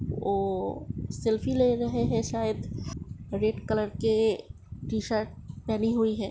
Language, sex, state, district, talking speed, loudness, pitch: Hindi, female, Uttar Pradesh, Hamirpur, 125 wpm, -29 LUFS, 215 Hz